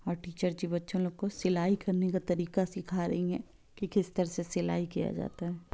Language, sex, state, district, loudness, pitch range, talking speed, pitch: Hindi, female, Bihar, Muzaffarpur, -33 LUFS, 175-190 Hz, 220 wpm, 180 Hz